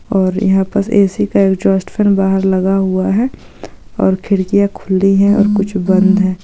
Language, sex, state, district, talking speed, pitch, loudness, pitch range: Hindi, female, Andhra Pradesh, Guntur, 175 wpm, 195 Hz, -13 LUFS, 190-200 Hz